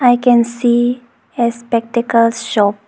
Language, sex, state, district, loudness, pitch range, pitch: English, female, Arunachal Pradesh, Longding, -15 LUFS, 230-240 Hz, 235 Hz